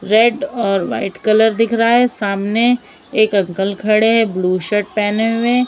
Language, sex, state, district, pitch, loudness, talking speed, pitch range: Hindi, female, Maharashtra, Mumbai Suburban, 215 Hz, -15 LUFS, 170 wpm, 200-230 Hz